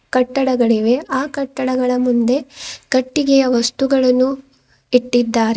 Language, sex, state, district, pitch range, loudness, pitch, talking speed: Kannada, female, Karnataka, Bidar, 245-270 Hz, -16 LUFS, 255 Hz, 75 wpm